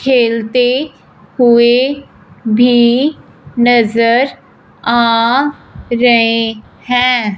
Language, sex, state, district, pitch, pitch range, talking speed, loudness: Hindi, female, Punjab, Fazilka, 240 Hz, 230-250 Hz, 55 wpm, -12 LUFS